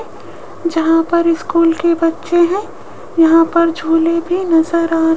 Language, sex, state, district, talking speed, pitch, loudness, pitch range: Hindi, female, Rajasthan, Jaipur, 150 wpm, 335 Hz, -14 LUFS, 330-340 Hz